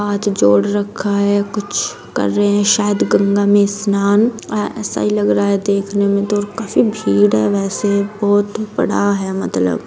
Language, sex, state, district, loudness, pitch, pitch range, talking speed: Hindi, female, Bihar, East Champaran, -16 LUFS, 200 Hz, 195-205 Hz, 170 wpm